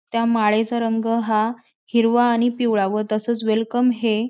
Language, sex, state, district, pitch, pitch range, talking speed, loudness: Marathi, female, Maharashtra, Aurangabad, 230 Hz, 220-235 Hz, 155 wpm, -20 LUFS